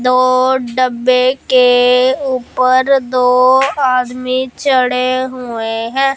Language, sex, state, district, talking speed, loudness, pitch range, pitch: Hindi, female, Punjab, Fazilka, 85 wpm, -13 LUFS, 250-260 Hz, 255 Hz